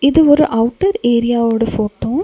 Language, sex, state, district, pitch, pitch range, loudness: Tamil, female, Tamil Nadu, Nilgiris, 240 Hz, 230-300 Hz, -14 LUFS